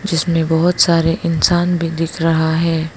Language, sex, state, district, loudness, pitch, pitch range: Hindi, female, Arunachal Pradesh, Lower Dibang Valley, -15 LUFS, 165 Hz, 160-170 Hz